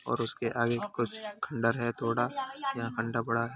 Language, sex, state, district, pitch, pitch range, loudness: Hindi, male, Uttar Pradesh, Hamirpur, 120 Hz, 115-135 Hz, -32 LUFS